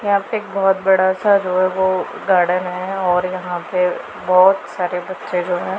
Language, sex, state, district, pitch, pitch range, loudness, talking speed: Hindi, female, Punjab, Pathankot, 185 Hz, 180-195 Hz, -18 LUFS, 195 wpm